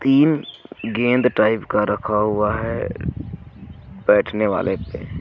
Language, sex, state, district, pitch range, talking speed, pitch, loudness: Hindi, male, Jharkhand, Garhwa, 105-135 Hz, 115 wpm, 115 Hz, -20 LUFS